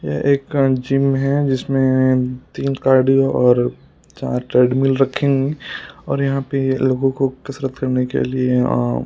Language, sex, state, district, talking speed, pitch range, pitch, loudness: Hindi, male, Punjab, Kapurthala, 145 wpm, 130-135 Hz, 135 Hz, -18 LUFS